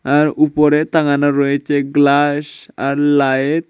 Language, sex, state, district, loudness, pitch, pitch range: Bengali, male, Tripura, West Tripura, -15 LUFS, 145 Hz, 140-150 Hz